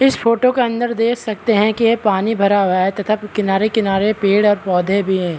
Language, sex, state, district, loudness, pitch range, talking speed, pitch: Hindi, male, Bihar, Vaishali, -16 LUFS, 195-230 Hz, 235 wpm, 210 Hz